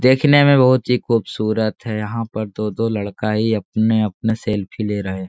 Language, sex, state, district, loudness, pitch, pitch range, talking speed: Hindi, male, Bihar, Jahanabad, -18 LUFS, 110 Hz, 105-115 Hz, 180 wpm